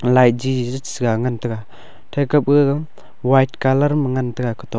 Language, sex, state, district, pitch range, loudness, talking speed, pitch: Wancho, male, Arunachal Pradesh, Longding, 120-140 Hz, -18 LUFS, 165 wpm, 130 Hz